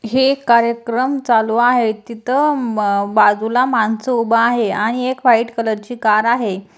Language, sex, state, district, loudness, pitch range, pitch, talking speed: Marathi, female, Maharashtra, Aurangabad, -16 LUFS, 220-250 Hz, 235 Hz, 150 wpm